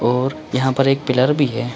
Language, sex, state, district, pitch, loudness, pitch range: Hindi, male, Chhattisgarh, Bilaspur, 130 Hz, -18 LUFS, 125-135 Hz